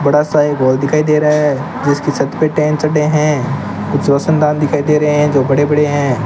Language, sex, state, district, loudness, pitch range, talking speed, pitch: Hindi, male, Rajasthan, Bikaner, -13 LUFS, 140-150 Hz, 210 wpm, 150 Hz